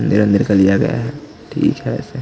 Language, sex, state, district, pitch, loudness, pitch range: Hindi, male, Chhattisgarh, Jashpur, 105 Hz, -16 LUFS, 100-115 Hz